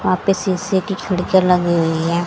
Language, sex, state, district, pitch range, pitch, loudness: Hindi, female, Haryana, Jhajjar, 175-190 Hz, 185 Hz, -17 LUFS